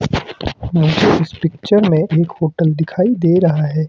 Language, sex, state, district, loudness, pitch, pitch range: Hindi, male, Himachal Pradesh, Shimla, -15 LUFS, 165 Hz, 160-175 Hz